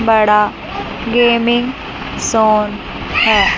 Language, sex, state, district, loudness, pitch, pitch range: Hindi, female, Chandigarh, Chandigarh, -14 LUFS, 225 Hz, 210-235 Hz